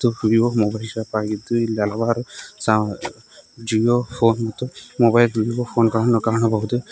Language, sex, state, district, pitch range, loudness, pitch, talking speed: Kannada, male, Karnataka, Koppal, 110-120 Hz, -20 LUFS, 115 Hz, 130 wpm